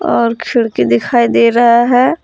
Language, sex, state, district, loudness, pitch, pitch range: Hindi, female, Jharkhand, Palamu, -11 LUFS, 235 Hz, 230-240 Hz